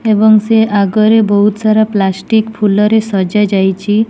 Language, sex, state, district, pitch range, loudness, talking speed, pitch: Odia, female, Odisha, Nuapada, 205-220 Hz, -11 LUFS, 130 wpm, 210 Hz